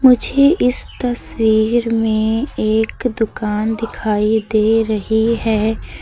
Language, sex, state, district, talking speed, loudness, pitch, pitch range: Hindi, female, Uttar Pradesh, Lucknow, 100 wpm, -16 LUFS, 225 Hz, 220-240 Hz